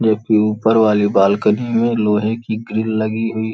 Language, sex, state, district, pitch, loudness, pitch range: Hindi, male, Uttar Pradesh, Gorakhpur, 110 Hz, -16 LUFS, 105-110 Hz